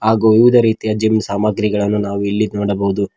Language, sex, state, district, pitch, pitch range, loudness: Kannada, male, Karnataka, Koppal, 105 Hz, 100-110 Hz, -15 LUFS